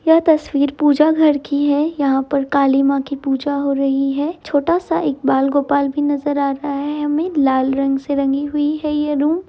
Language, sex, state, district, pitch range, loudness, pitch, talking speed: Hindi, female, Jharkhand, Sahebganj, 275-300 Hz, -17 LUFS, 285 Hz, 220 wpm